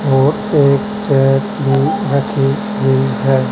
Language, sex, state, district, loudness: Hindi, male, Haryana, Charkhi Dadri, -14 LUFS